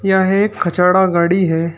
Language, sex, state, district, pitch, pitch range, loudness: Hindi, male, Uttar Pradesh, Shamli, 185 Hz, 170-190 Hz, -14 LUFS